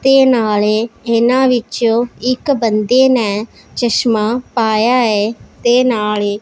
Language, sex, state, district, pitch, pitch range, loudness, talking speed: Punjabi, female, Punjab, Pathankot, 235 Hz, 215-250 Hz, -14 LUFS, 120 wpm